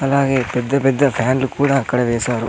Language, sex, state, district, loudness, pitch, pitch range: Telugu, male, Andhra Pradesh, Sri Satya Sai, -17 LUFS, 130 Hz, 125-140 Hz